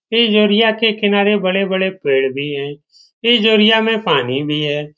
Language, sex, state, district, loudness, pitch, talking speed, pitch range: Hindi, male, Bihar, Saran, -14 LUFS, 195 Hz, 120 wpm, 145-220 Hz